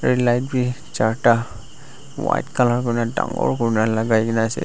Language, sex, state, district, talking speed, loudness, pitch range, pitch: Nagamese, male, Nagaland, Dimapur, 140 wpm, -20 LUFS, 110-125 Hz, 115 Hz